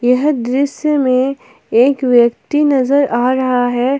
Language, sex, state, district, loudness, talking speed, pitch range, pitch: Hindi, female, Jharkhand, Palamu, -14 LUFS, 135 wpm, 245-280 Hz, 260 Hz